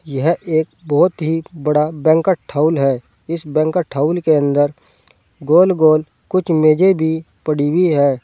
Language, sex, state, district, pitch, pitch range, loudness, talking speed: Hindi, male, Uttar Pradesh, Saharanpur, 155 Hz, 150-170 Hz, -16 LUFS, 155 wpm